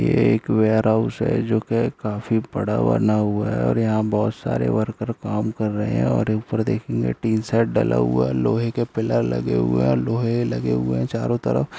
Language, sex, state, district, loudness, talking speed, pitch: Hindi, male, Bihar, Jamui, -21 LUFS, 210 wpm, 105 Hz